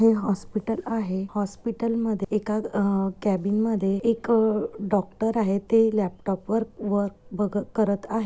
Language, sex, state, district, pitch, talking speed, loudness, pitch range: Marathi, female, Maharashtra, Nagpur, 210 Hz, 130 wpm, -25 LUFS, 200-225 Hz